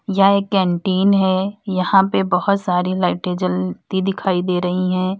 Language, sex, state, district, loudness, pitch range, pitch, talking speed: Hindi, female, Uttar Pradesh, Lalitpur, -18 LUFS, 180-195 Hz, 190 Hz, 160 wpm